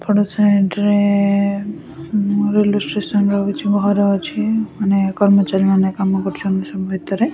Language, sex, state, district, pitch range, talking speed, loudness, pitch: Odia, female, Odisha, Khordha, 195-205 Hz, 140 wpm, -17 LUFS, 200 Hz